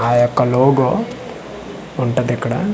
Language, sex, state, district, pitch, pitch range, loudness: Telugu, male, Andhra Pradesh, Manyam, 125 Hz, 120-130 Hz, -16 LUFS